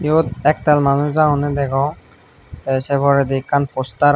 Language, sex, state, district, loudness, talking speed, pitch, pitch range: Chakma, male, Tripura, Unakoti, -17 LUFS, 160 wpm, 140 Hz, 135-145 Hz